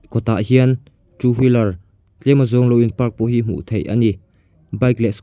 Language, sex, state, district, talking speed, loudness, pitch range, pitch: Mizo, male, Mizoram, Aizawl, 205 wpm, -17 LUFS, 100-125 Hz, 115 Hz